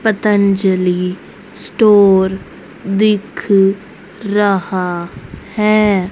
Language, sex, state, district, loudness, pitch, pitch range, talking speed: Hindi, female, Haryana, Rohtak, -14 LUFS, 195 Hz, 190-210 Hz, 50 wpm